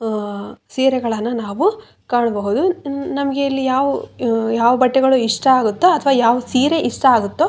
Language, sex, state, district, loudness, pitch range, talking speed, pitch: Kannada, female, Karnataka, Raichur, -17 LUFS, 230-280 Hz, 130 wpm, 255 Hz